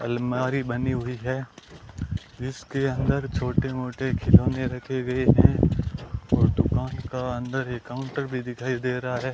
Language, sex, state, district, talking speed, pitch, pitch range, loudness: Hindi, male, Rajasthan, Bikaner, 150 wpm, 125 Hz, 120-130 Hz, -25 LUFS